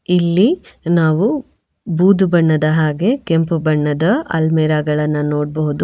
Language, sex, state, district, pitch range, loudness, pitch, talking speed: Kannada, female, Karnataka, Bangalore, 155-185 Hz, -16 LUFS, 165 Hz, 105 wpm